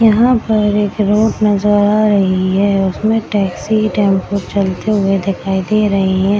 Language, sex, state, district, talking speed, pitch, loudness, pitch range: Hindi, female, Bihar, Samastipur, 160 wpm, 205 Hz, -14 LUFS, 195-215 Hz